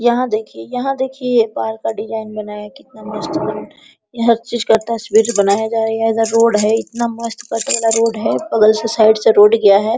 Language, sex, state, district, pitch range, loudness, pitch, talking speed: Hindi, female, Bihar, Araria, 215-230 Hz, -15 LUFS, 225 Hz, 215 wpm